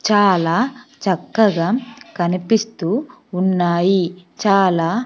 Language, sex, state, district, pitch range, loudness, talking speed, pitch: Telugu, female, Andhra Pradesh, Sri Satya Sai, 180-230 Hz, -18 LUFS, 60 wpm, 195 Hz